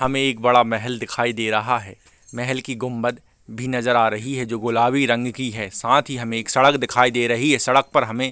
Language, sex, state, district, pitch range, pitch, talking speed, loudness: Hindi, male, Chhattisgarh, Bilaspur, 115-130 Hz, 125 Hz, 240 wpm, -20 LUFS